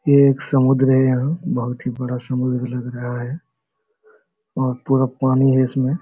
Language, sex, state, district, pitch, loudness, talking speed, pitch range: Hindi, male, Jharkhand, Sahebganj, 130 Hz, -19 LUFS, 180 wpm, 125-140 Hz